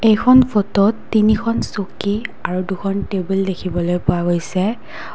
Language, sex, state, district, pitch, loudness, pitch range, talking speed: Assamese, female, Assam, Kamrup Metropolitan, 195 Hz, -18 LUFS, 185-215 Hz, 115 wpm